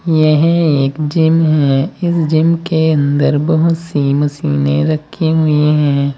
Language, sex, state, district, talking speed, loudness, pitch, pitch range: Hindi, male, Uttar Pradesh, Saharanpur, 135 wpm, -13 LUFS, 155 Hz, 145-160 Hz